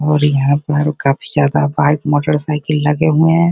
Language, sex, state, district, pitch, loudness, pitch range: Hindi, male, Bihar, Begusarai, 150 Hz, -14 LUFS, 145-155 Hz